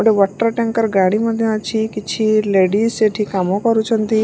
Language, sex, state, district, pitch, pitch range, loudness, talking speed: Odia, female, Odisha, Malkangiri, 220 Hz, 205-225 Hz, -17 LUFS, 155 wpm